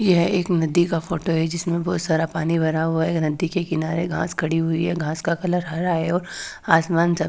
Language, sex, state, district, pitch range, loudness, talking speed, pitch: Hindi, female, Bihar, Katihar, 160-175 Hz, -22 LUFS, 240 wpm, 170 Hz